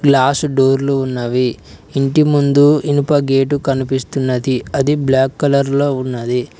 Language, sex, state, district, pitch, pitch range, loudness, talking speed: Telugu, male, Telangana, Mahabubabad, 135 Hz, 130-145 Hz, -15 LUFS, 120 wpm